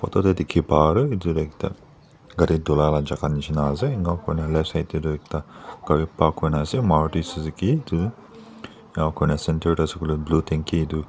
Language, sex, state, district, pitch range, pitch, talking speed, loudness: Nagamese, male, Nagaland, Dimapur, 75-85 Hz, 80 Hz, 185 wpm, -23 LUFS